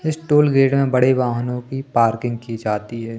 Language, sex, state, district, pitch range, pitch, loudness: Hindi, male, Madhya Pradesh, Katni, 115-135 Hz, 125 Hz, -19 LUFS